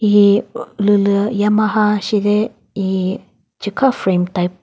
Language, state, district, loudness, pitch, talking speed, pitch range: Chakhesang, Nagaland, Dimapur, -16 LUFS, 205 Hz, 115 wpm, 190-210 Hz